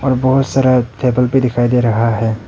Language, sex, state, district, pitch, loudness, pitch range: Hindi, male, Arunachal Pradesh, Papum Pare, 125 Hz, -14 LUFS, 115-130 Hz